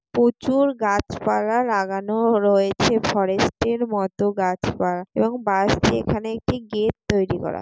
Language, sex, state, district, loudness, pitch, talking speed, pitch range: Bengali, female, West Bengal, Jalpaiguri, -21 LUFS, 205 Hz, 135 wpm, 195-230 Hz